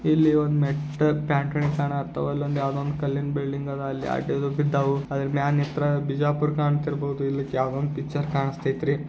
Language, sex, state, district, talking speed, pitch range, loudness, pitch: Kannada, male, Karnataka, Bijapur, 160 wpm, 140-145 Hz, -25 LUFS, 145 Hz